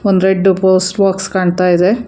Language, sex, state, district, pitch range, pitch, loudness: Kannada, female, Karnataka, Bangalore, 185-195 Hz, 190 Hz, -12 LUFS